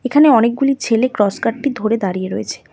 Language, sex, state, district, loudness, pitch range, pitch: Bengali, female, West Bengal, Cooch Behar, -16 LUFS, 215-270 Hz, 235 Hz